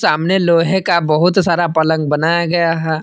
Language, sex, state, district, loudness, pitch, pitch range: Hindi, male, Jharkhand, Palamu, -14 LUFS, 170 Hz, 160-175 Hz